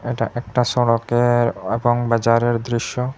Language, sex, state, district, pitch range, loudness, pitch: Bengali, male, Assam, Hailakandi, 115-120 Hz, -19 LUFS, 120 Hz